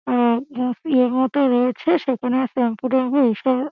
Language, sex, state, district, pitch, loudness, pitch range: Bengali, female, West Bengal, Dakshin Dinajpur, 255 Hz, -20 LUFS, 245-265 Hz